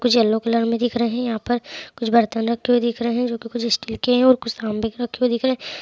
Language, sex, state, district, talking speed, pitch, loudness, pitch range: Hindi, female, Chhattisgarh, Jashpur, 310 wpm, 235 Hz, -20 LUFS, 230-245 Hz